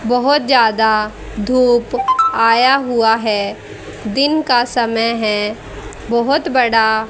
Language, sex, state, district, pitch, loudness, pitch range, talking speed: Hindi, female, Haryana, Charkhi Dadri, 235 Hz, -14 LUFS, 220-255 Hz, 100 wpm